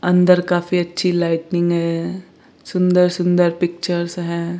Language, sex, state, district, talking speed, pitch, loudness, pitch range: Hindi, female, Chandigarh, Chandigarh, 115 wpm, 175 Hz, -18 LUFS, 170-180 Hz